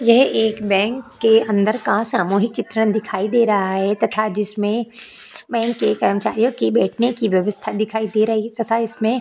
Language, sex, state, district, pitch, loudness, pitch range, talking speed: Hindi, female, Chhattisgarh, Korba, 220 Hz, -19 LUFS, 210-230 Hz, 180 wpm